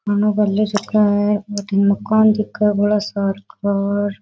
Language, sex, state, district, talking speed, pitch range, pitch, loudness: Rajasthani, female, Rajasthan, Nagaur, 100 wpm, 200-210 Hz, 205 Hz, -18 LUFS